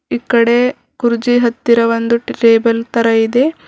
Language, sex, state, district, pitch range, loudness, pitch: Kannada, female, Karnataka, Bidar, 230-245 Hz, -13 LUFS, 235 Hz